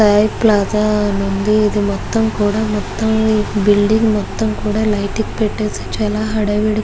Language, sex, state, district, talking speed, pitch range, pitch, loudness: Telugu, female, Andhra Pradesh, Guntur, 125 wpm, 205-215 Hz, 210 Hz, -16 LUFS